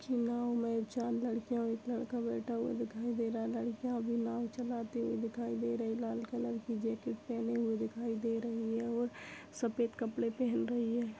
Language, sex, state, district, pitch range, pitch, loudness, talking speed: Hindi, female, Chhattisgarh, Bastar, 225-240 Hz, 230 Hz, -37 LUFS, 210 wpm